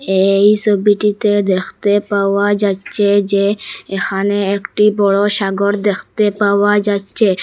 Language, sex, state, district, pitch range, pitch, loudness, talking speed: Bengali, female, Assam, Hailakandi, 195-205 Hz, 205 Hz, -14 LUFS, 105 wpm